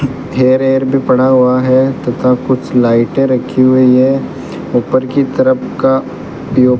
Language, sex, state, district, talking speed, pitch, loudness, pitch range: Hindi, male, Rajasthan, Bikaner, 160 wpm, 130 Hz, -12 LUFS, 125-135 Hz